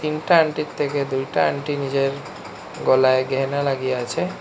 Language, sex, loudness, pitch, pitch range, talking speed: Bengali, male, -21 LUFS, 140 Hz, 135-150 Hz, 135 wpm